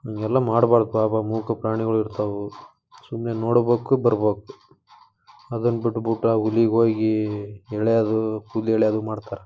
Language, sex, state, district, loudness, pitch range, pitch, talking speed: Kannada, male, Karnataka, Dharwad, -22 LUFS, 110-115 Hz, 110 Hz, 115 wpm